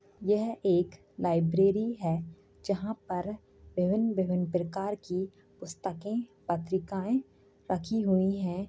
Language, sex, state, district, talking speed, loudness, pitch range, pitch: Hindi, female, Uttar Pradesh, Jyotiba Phule Nagar, 105 wpm, -31 LUFS, 180-210 Hz, 190 Hz